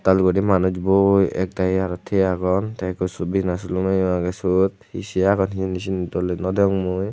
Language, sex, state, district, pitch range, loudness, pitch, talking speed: Chakma, male, Tripura, Unakoti, 90-95 Hz, -21 LUFS, 95 Hz, 195 wpm